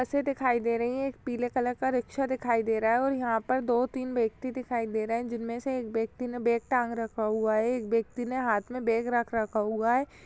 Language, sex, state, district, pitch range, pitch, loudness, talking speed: Hindi, female, Uttar Pradesh, Jyotiba Phule Nagar, 230-255 Hz, 240 Hz, -29 LUFS, 255 wpm